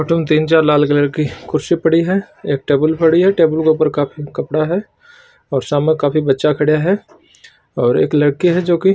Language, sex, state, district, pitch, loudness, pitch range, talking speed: Marwari, male, Rajasthan, Churu, 155 Hz, -15 LUFS, 145-175 Hz, 200 wpm